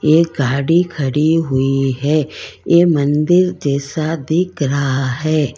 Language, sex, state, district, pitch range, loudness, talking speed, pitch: Hindi, female, Karnataka, Bangalore, 140-165 Hz, -16 LUFS, 120 wpm, 150 Hz